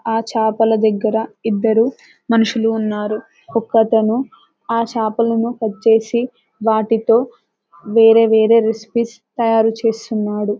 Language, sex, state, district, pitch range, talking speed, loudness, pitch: Telugu, female, Telangana, Karimnagar, 220-230 Hz, 100 wpm, -16 LUFS, 225 Hz